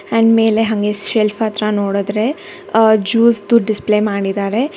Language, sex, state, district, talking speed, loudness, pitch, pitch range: Kannada, female, Karnataka, Bangalore, 125 wpm, -15 LUFS, 215 Hz, 210-225 Hz